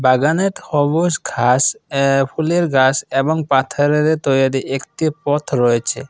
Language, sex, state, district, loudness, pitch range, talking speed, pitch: Bengali, male, Assam, Kamrup Metropolitan, -17 LUFS, 135-160 Hz, 120 wpm, 145 Hz